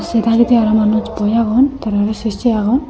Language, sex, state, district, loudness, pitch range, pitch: Chakma, female, Tripura, Unakoti, -14 LUFS, 215-235 Hz, 225 Hz